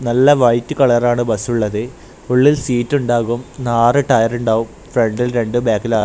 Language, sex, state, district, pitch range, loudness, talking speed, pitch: Malayalam, male, Kerala, Kasaragod, 115-125 Hz, -16 LUFS, 140 wpm, 120 Hz